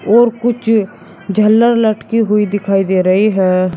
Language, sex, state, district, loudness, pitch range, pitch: Hindi, male, Uttar Pradesh, Shamli, -13 LUFS, 195-225 Hz, 210 Hz